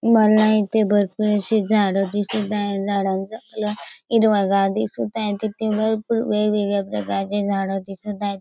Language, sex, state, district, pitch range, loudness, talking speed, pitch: Marathi, female, Maharashtra, Dhule, 195-215 Hz, -20 LUFS, 135 wpm, 205 Hz